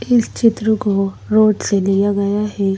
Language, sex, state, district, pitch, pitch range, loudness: Hindi, female, Madhya Pradesh, Bhopal, 205 Hz, 200-220 Hz, -16 LUFS